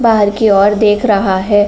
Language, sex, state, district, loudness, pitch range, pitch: Hindi, female, Uttar Pradesh, Jalaun, -11 LUFS, 200-215 Hz, 205 Hz